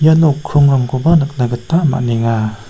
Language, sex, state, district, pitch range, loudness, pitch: Garo, male, Meghalaya, South Garo Hills, 120-155 Hz, -14 LUFS, 135 Hz